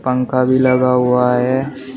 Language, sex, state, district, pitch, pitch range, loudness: Hindi, male, Uttar Pradesh, Shamli, 130 Hz, 125-130 Hz, -15 LUFS